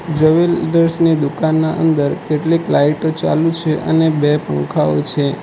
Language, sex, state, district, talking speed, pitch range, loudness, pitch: Gujarati, male, Gujarat, Valsad, 145 wpm, 150-165 Hz, -15 LUFS, 160 Hz